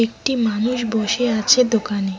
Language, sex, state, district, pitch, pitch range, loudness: Bengali, female, West Bengal, Cooch Behar, 230 Hz, 210-245 Hz, -18 LUFS